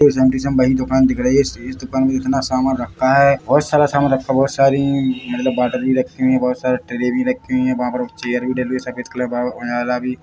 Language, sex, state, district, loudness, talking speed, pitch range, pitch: Hindi, male, Chhattisgarh, Bilaspur, -17 LUFS, 260 wpm, 125-135 Hz, 130 Hz